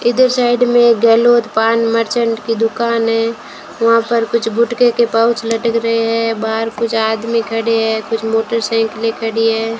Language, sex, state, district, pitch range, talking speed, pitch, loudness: Hindi, female, Rajasthan, Bikaner, 225-235 Hz, 165 wpm, 230 Hz, -14 LUFS